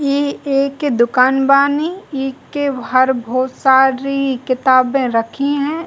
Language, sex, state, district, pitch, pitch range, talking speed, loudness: Bhojpuri, female, Bihar, East Champaran, 270 Hz, 255-280 Hz, 125 wpm, -15 LUFS